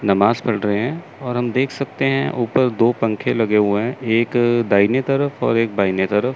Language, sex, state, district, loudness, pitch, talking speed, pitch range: Hindi, male, Chandigarh, Chandigarh, -18 LUFS, 115 Hz, 210 wpm, 105-130 Hz